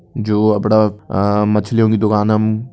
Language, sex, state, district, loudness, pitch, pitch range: Kumaoni, male, Uttarakhand, Tehri Garhwal, -15 LUFS, 105 Hz, 105-110 Hz